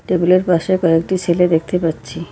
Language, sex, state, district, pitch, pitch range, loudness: Bengali, female, West Bengal, Cooch Behar, 175 Hz, 165-180 Hz, -16 LUFS